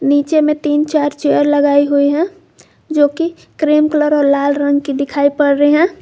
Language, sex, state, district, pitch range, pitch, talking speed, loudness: Hindi, female, Jharkhand, Garhwa, 285-305 Hz, 290 Hz, 200 wpm, -14 LUFS